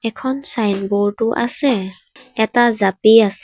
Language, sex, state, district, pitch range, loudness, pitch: Assamese, female, Assam, Sonitpur, 205-240 Hz, -16 LUFS, 225 Hz